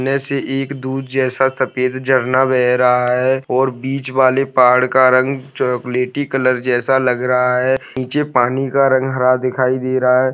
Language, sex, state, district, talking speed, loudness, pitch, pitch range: Hindi, male, Maharashtra, Dhule, 175 wpm, -16 LUFS, 130 Hz, 125-135 Hz